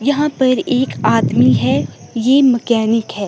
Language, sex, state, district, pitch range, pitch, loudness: Hindi, female, Himachal Pradesh, Shimla, 230-275 Hz, 255 Hz, -14 LUFS